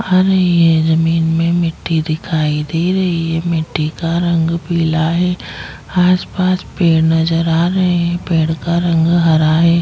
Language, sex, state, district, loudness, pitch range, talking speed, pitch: Hindi, female, Chhattisgarh, Jashpur, -15 LUFS, 160-175 Hz, 155 wpm, 165 Hz